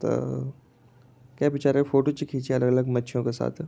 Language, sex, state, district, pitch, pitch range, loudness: Garhwali, male, Uttarakhand, Tehri Garhwal, 130 Hz, 120-140 Hz, -25 LUFS